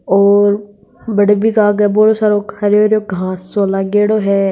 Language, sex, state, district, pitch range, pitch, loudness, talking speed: Hindi, female, Rajasthan, Nagaur, 200-210 Hz, 205 Hz, -13 LUFS, 175 wpm